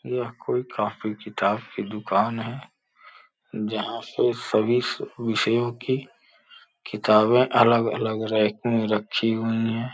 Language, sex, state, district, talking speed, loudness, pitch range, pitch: Hindi, male, Uttar Pradesh, Gorakhpur, 115 wpm, -24 LUFS, 110-120 Hz, 115 Hz